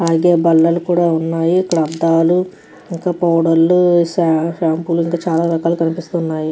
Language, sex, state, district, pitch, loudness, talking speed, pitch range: Telugu, female, Andhra Pradesh, Krishna, 170 Hz, -15 LUFS, 90 wpm, 165-175 Hz